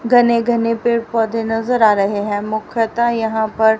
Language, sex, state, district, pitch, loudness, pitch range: Hindi, female, Haryana, Rohtak, 225 Hz, -17 LUFS, 220-235 Hz